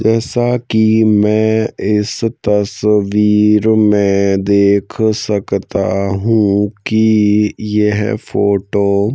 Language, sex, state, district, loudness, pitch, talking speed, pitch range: Hindi, male, Madhya Pradesh, Bhopal, -13 LUFS, 105 Hz, 85 wpm, 100-110 Hz